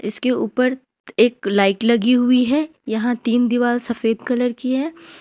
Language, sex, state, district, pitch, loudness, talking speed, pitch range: Hindi, female, Jharkhand, Ranchi, 245 Hz, -19 LUFS, 175 wpm, 230-255 Hz